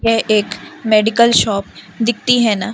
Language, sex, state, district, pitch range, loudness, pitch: Hindi, female, Madhya Pradesh, Umaria, 210-235 Hz, -14 LUFS, 225 Hz